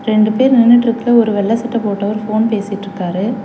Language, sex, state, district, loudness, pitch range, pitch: Tamil, female, Tamil Nadu, Chennai, -14 LUFS, 205-235 Hz, 215 Hz